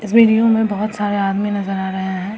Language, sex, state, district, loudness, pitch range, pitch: Hindi, female, Bihar, Samastipur, -17 LUFS, 195-215 Hz, 205 Hz